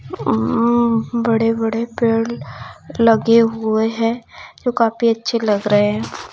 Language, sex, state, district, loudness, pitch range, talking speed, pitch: Hindi, female, Maharashtra, Chandrapur, -17 LUFS, 225-235 Hz, 115 wpm, 230 Hz